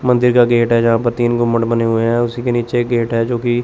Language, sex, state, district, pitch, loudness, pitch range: Hindi, male, Chandigarh, Chandigarh, 120 Hz, -15 LUFS, 115-120 Hz